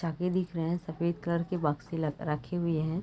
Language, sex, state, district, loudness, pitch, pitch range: Hindi, female, Bihar, Sitamarhi, -32 LUFS, 170 Hz, 160-175 Hz